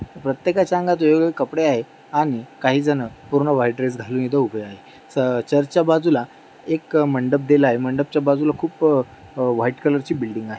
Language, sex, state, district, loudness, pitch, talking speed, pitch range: Marathi, male, Maharashtra, Dhule, -20 LUFS, 140 Hz, 165 wpm, 125-155 Hz